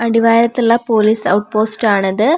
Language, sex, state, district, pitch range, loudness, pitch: Malayalam, female, Kerala, Wayanad, 215-235 Hz, -13 LUFS, 225 Hz